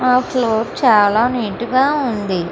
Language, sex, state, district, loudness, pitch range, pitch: Telugu, female, Andhra Pradesh, Guntur, -16 LUFS, 210-255 Hz, 235 Hz